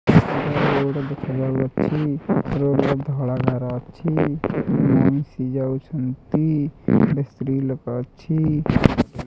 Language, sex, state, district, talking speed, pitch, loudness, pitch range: Odia, male, Odisha, Khordha, 85 wpm, 140 Hz, -21 LUFS, 130-150 Hz